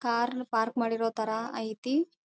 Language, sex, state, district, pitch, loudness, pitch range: Kannada, female, Karnataka, Dharwad, 230 Hz, -31 LUFS, 225-250 Hz